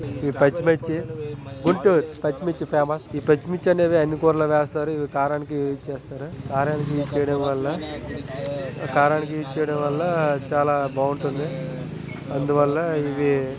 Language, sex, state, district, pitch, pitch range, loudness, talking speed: Telugu, male, Andhra Pradesh, Srikakulam, 145 Hz, 140-155 Hz, -23 LUFS, 115 wpm